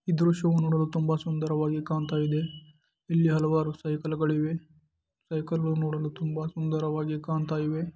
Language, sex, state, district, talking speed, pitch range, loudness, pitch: Kannada, male, Karnataka, Chamarajanagar, 120 wpm, 155-160 Hz, -28 LUFS, 155 Hz